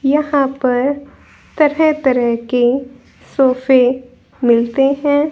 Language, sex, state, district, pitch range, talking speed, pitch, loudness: Hindi, female, Haryana, Jhajjar, 250-285 Hz, 90 wpm, 265 Hz, -15 LUFS